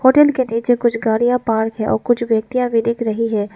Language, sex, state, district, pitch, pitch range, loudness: Hindi, female, Arunachal Pradesh, Lower Dibang Valley, 230 Hz, 225-245 Hz, -17 LUFS